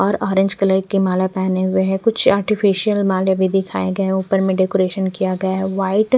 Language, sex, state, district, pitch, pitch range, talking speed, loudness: Hindi, female, Chandigarh, Chandigarh, 190 Hz, 190-195 Hz, 225 wpm, -18 LUFS